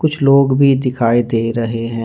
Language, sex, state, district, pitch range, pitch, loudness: Hindi, male, Jharkhand, Ranchi, 115-140 Hz, 120 Hz, -14 LUFS